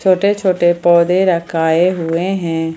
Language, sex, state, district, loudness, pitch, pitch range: Hindi, female, Jharkhand, Ranchi, -14 LUFS, 175 Hz, 165-185 Hz